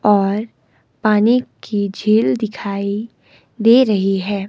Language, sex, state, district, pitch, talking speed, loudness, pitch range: Hindi, female, Himachal Pradesh, Shimla, 205 Hz, 105 wpm, -17 LUFS, 195-220 Hz